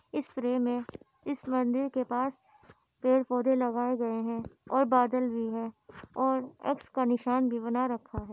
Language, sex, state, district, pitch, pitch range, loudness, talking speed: Hindi, female, Uttar Pradesh, Muzaffarnagar, 250 Hz, 240-260 Hz, -30 LUFS, 165 wpm